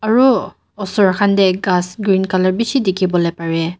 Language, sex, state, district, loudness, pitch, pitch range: Nagamese, female, Nagaland, Dimapur, -16 LUFS, 190 Hz, 180-210 Hz